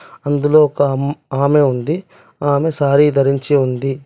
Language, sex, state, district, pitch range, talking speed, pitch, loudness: Telugu, male, Telangana, Adilabad, 140-150 Hz, 135 wpm, 145 Hz, -15 LUFS